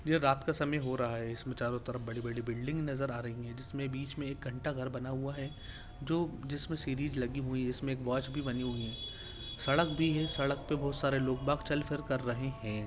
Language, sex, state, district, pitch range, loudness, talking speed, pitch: Hindi, male, Telangana, Nalgonda, 120-145 Hz, -35 LUFS, 235 wpm, 135 Hz